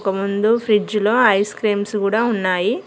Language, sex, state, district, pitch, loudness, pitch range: Telugu, female, Telangana, Mahabubabad, 210 Hz, -18 LUFS, 200-220 Hz